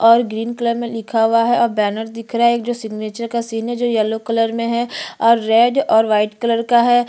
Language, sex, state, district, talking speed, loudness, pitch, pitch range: Hindi, female, Chhattisgarh, Bastar, 255 wpm, -17 LUFS, 230 Hz, 225-235 Hz